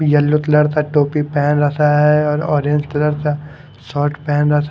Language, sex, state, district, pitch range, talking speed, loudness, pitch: Hindi, male, Haryana, Charkhi Dadri, 145-150 Hz, 165 wpm, -16 LUFS, 150 Hz